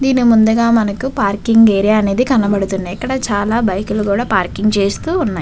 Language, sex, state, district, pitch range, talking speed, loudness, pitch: Telugu, female, Andhra Pradesh, Visakhapatnam, 200-235 Hz, 165 wpm, -14 LUFS, 215 Hz